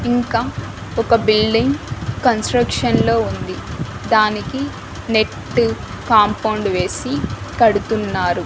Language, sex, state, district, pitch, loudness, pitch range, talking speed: Telugu, female, Andhra Pradesh, Annamaya, 220 Hz, -18 LUFS, 210-230 Hz, 80 wpm